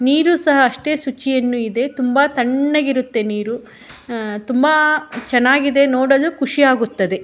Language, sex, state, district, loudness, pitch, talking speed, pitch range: Kannada, female, Karnataka, Shimoga, -16 LUFS, 260 Hz, 115 wpm, 240-285 Hz